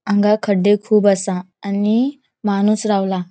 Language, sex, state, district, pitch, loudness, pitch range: Konkani, female, Goa, North and South Goa, 205 Hz, -17 LUFS, 195-215 Hz